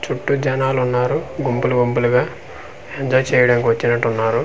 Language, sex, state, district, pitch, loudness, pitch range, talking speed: Telugu, male, Andhra Pradesh, Manyam, 125 Hz, -18 LUFS, 120-130 Hz, 120 wpm